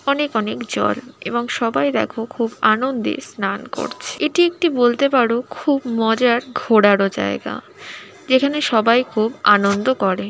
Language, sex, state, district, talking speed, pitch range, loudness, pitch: Bengali, female, West Bengal, Malda, 135 wpm, 220-265 Hz, -18 LUFS, 240 Hz